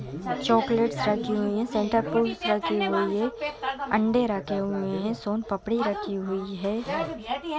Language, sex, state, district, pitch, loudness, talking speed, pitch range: Hindi, female, Uttar Pradesh, Jalaun, 215 Hz, -27 LUFS, 125 wpm, 200-235 Hz